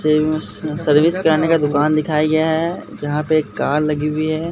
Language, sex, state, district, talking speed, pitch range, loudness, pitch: Hindi, male, Bihar, Katihar, 185 wpm, 150-160 Hz, -17 LUFS, 155 Hz